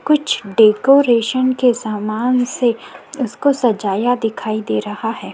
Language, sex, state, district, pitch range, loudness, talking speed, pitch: Hindi, female, Chhattisgarh, Korba, 215-255 Hz, -16 LUFS, 125 wpm, 235 Hz